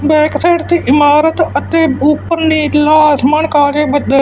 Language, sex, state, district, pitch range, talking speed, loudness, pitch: Punjabi, male, Punjab, Fazilka, 290-320 Hz, 155 wpm, -11 LUFS, 300 Hz